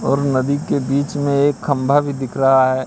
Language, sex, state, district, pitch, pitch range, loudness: Hindi, male, Madhya Pradesh, Katni, 140 Hz, 130-145 Hz, -17 LUFS